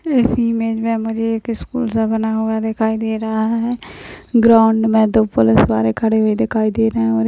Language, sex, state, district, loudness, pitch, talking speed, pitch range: Hindi, female, Bihar, Kishanganj, -16 LUFS, 225 Hz, 220 wpm, 220-230 Hz